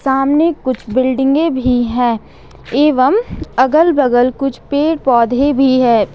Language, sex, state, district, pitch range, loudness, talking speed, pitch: Hindi, female, Jharkhand, Ranchi, 245-290 Hz, -13 LUFS, 125 wpm, 265 Hz